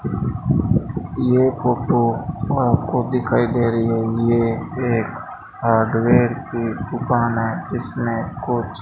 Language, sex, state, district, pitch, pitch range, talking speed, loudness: Hindi, male, Rajasthan, Bikaner, 120 Hz, 115-125 Hz, 110 wpm, -20 LUFS